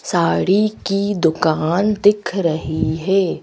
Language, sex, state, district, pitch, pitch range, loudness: Hindi, female, Madhya Pradesh, Bhopal, 190 Hz, 160-200 Hz, -18 LUFS